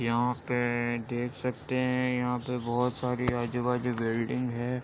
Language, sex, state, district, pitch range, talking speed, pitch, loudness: Hindi, male, Uttar Pradesh, Jyotiba Phule Nagar, 120-125 Hz, 150 wpm, 125 Hz, -30 LUFS